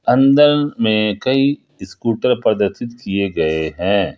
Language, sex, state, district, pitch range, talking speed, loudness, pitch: Hindi, male, Jharkhand, Ranchi, 100-135 Hz, 115 wpm, -16 LUFS, 115 Hz